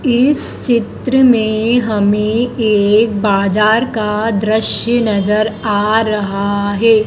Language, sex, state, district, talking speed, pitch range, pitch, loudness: Hindi, female, Madhya Pradesh, Dhar, 100 wpm, 210-230 Hz, 215 Hz, -13 LUFS